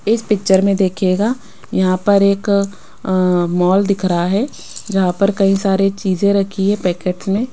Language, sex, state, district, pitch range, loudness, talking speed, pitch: Hindi, female, Rajasthan, Jaipur, 185-200 Hz, -16 LUFS, 165 wpm, 195 Hz